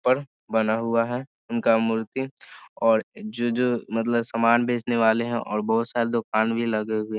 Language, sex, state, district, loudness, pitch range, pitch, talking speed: Hindi, male, Bihar, Sitamarhi, -24 LUFS, 110-120 Hz, 115 Hz, 175 wpm